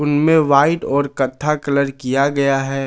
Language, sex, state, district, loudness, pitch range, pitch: Hindi, male, Jharkhand, Ranchi, -17 LUFS, 135-150 Hz, 140 Hz